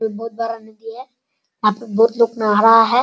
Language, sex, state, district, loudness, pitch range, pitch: Hindi, male, Bihar, Sitamarhi, -16 LUFS, 220-235 Hz, 230 Hz